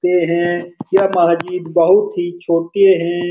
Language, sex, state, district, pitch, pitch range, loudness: Hindi, male, Bihar, Lakhisarai, 175 Hz, 170-195 Hz, -15 LUFS